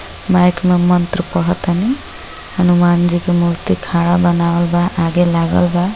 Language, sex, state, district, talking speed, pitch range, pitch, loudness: Hindi, female, Uttar Pradesh, Gorakhpur, 140 wpm, 170-180 Hz, 175 Hz, -14 LUFS